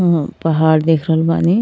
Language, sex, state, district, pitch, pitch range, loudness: Bhojpuri, female, Uttar Pradesh, Ghazipur, 160 Hz, 160-165 Hz, -15 LUFS